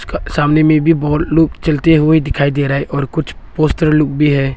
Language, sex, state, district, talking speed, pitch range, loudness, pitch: Hindi, male, Arunachal Pradesh, Longding, 225 wpm, 140-160 Hz, -14 LUFS, 150 Hz